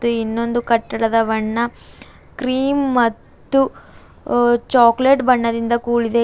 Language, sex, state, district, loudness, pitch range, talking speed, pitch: Kannada, female, Karnataka, Bidar, -17 LUFS, 230-255 Hz, 85 wpm, 235 Hz